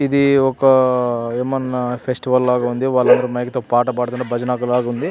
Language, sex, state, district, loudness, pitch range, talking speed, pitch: Telugu, male, Andhra Pradesh, Anantapur, -17 LUFS, 125-130 Hz, 150 wpm, 125 Hz